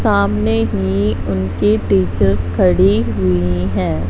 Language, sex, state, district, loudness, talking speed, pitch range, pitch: Hindi, female, Punjab, Fazilka, -16 LUFS, 105 wpm, 90-100 Hz, 95 Hz